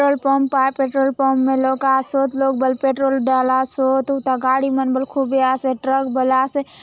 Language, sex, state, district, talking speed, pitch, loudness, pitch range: Halbi, female, Chhattisgarh, Bastar, 185 wpm, 265 Hz, -18 LUFS, 260-270 Hz